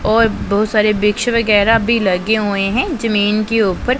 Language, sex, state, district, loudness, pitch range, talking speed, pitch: Hindi, female, Punjab, Pathankot, -15 LUFS, 210-230 Hz, 180 wpm, 215 Hz